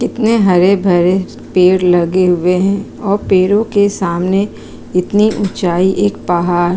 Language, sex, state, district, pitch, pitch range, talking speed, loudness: Hindi, female, Uttar Pradesh, Jyotiba Phule Nagar, 190 Hz, 180-200 Hz, 135 wpm, -13 LUFS